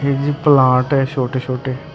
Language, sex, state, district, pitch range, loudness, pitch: Punjabi, male, Karnataka, Bangalore, 130-140 Hz, -16 LUFS, 135 Hz